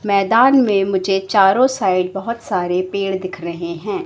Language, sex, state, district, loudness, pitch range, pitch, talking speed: Hindi, female, Madhya Pradesh, Katni, -17 LUFS, 185-220 Hz, 195 Hz, 160 wpm